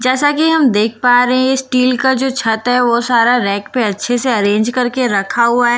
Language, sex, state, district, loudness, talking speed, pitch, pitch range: Hindi, female, Bihar, Katihar, -13 LUFS, 240 wpm, 245 Hz, 230-255 Hz